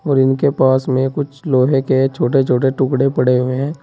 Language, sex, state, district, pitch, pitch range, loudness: Hindi, male, Uttar Pradesh, Saharanpur, 135 Hz, 130-140 Hz, -15 LUFS